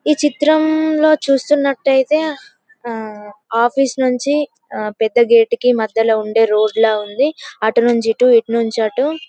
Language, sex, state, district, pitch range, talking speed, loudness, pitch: Telugu, female, Telangana, Karimnagar, 225-295 Hz, 130 wpm, -15 LUFS, 245 Hz